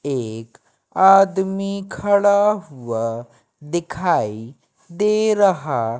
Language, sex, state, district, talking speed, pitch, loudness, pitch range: Hindi, male, Madhya Pradesh, Katni, 70 wpm, 175 Hz, -19 LUFS, 120-200 Hz